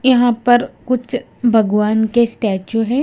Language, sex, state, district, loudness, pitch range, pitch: Hindi, female, Himachal Pradesh, Shimla, -16 LUFS, 220-250 Hz, 235 Hz